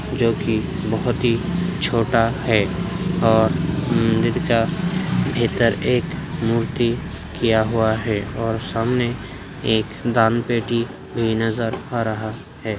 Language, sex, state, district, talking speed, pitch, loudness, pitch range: Hindi, male, Bihar, Saharsa, 110 wpm, 115 Hz, -21 LUFS, 110-120 Hz